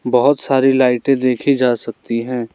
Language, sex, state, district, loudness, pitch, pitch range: Hindi, male, Arunachal Pradesh, Lower Dibang Valley, -16 LUFS, 125 Hz, 125-135 Hz